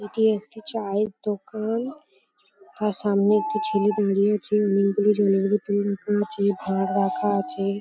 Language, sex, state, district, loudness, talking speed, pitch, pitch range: Bengali, female, West Bengal, Paschim Medinipur, -23 LUFS, 140 wpm, 210 Hz, 200-215 Hz